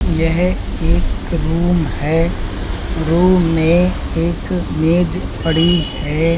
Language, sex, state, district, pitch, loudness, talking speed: Hindi, male, Uttar Pradesh, Budaun, 160 Hz, -16 LUFS, 95 wpm